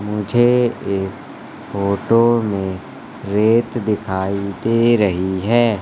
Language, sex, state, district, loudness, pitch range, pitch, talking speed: Hindi, male, Madhya Pradesh, Katni, -18 LUFS, 100-120 Hz, 105 Hz, 95 wpm